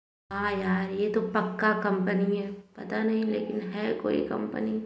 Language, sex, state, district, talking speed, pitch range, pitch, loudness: Hindi, female, Uttar Pradesh, Hamirpur, 175 wpm, 200-220 Hz, 205 Hz, -29 LUFS